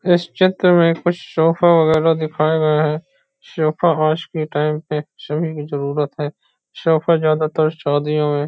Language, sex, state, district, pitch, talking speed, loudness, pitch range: Hindi, male, Uttar Pradesh, Hamirpur, 155 Hz, 165 wpm, -18 LUFS, 150-165 Hz